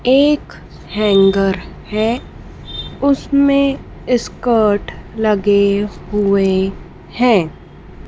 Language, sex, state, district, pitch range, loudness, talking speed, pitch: Hindi, female, Madhya Pradesh, Dhar, 195-250 Hz, -15 LUFS, 60 wpm, 210 Hz